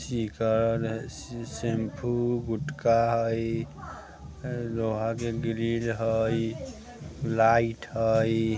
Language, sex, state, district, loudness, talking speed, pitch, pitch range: Bajjika, male, Bihar, Vaishali, -28 LUFS, 70 wpm, 115 Hz, 110-115 Hz